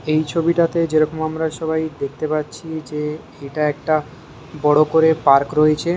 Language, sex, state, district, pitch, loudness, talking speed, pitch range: Bengali, male, West Bengal, Kolkata, 155 Hz, -19 LUFS, 140 wpm, 150-160 Hz